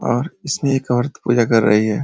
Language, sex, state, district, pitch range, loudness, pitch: Hindi, male, Uttar Pradesh, Ghazipur, 115-140 Hz, -18 LUFS, 120 Hz